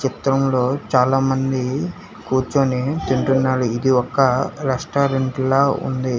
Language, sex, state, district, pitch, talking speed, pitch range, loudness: Telugu, male, Telangana, Hyderabad, 130 Hz, 70 wpm, 130-135 Hz, -19 LUFS